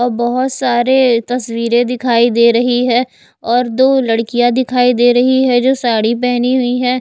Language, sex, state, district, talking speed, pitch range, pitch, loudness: Hindi, female, Chhattisgarh, Raipur, 170 wpm, 240-255 Hz, 245 Hz, -13 LUFS